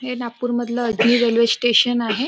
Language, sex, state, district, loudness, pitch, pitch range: Marathi, female, Maharashtra, Nagpur, -18 LUFS, 240 Hz, 235-245 Hz